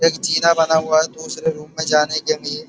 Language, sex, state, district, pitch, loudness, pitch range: Hindi, male, Uttar Pradesh, Budaun, 160 Hz, -18 LUFS, 160-180 Hz